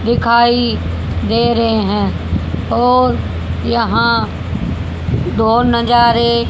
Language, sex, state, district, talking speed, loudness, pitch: Hindi, female, Haryana, Jhajjar, 75 wpm, -14 LUFS, 205 Hz